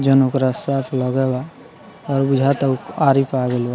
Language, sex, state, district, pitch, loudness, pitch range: Bhojpuri, male, Bihar, Muzaffarpur, 135 Hz, -18 LUFS, 130-135 Hz